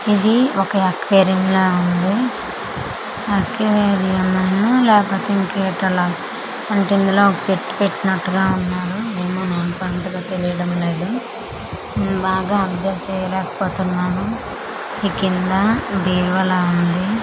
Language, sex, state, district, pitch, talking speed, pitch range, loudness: Telugu, female, Andhra Pradesh, Manyam, 190 Hz, 90 wpm, 185-200 Hz, -18 LUFS